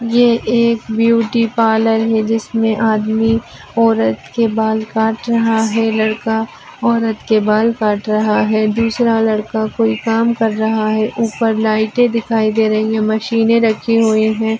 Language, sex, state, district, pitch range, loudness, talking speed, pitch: Hindi, female, Bihar, Madhepura, 220-230 Hz, -15 LUFS, 150 wpm, 220 Hz